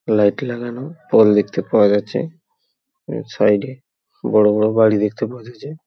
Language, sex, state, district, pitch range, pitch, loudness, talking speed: Bengali, male, West Bengal, Paschim Medinipur, 105-145 Hz, 120 Hz, -17 LUFS, 155 wpm